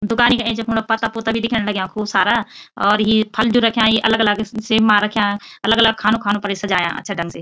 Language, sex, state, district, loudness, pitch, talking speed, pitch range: Garhwali, female, Uttarakhand, Uttarkashi, -17 LUFS, 220 Hz, 260 wpm, 205-225 Hz